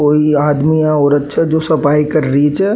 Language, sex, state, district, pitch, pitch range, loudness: Rajasthani, male, Rajasthan, Nagaur, 150 Hz, 145-155 Hz, -13 LUFS